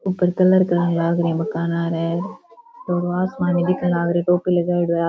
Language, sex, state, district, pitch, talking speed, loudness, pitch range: Rajasthani, female, Rajasthan, Churu, 175 Hz, 210 wpm, -20 LUFS, 170-180 Hz